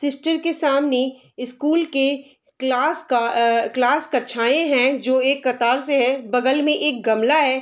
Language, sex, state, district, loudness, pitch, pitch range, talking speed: Hindi, female, Bihar, Saharsa, -19 LUFS, 265 Hz, 250-290 Hz, 175 wpm